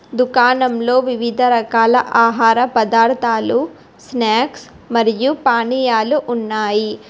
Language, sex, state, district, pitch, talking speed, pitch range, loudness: Telugu, female, Telangana, Hyderabad, 235 Hz, 75 wpm, 225-250 Hz, -15 LUFS